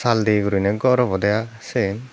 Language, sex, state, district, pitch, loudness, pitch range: Chakma, male, Tripura, Dhalai, 110 Hz, -20 LUFS, 100-120 Hz